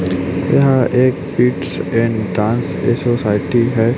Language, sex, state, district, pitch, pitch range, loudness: Hindi, male, Chhattisgarh, Raipur, 120 Hz, 105-125 Hz, -16 LUFS